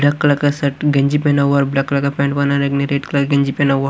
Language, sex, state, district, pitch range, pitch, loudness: Hindi, male, Haryana, Rohtak, 140-145 Hz, 140 Hz, -16 LUFS